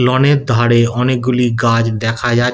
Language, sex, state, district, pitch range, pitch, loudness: Bengali, male, West Bengal, Kolkata, 115-125 Hz, 120 Hz, -14 LUFS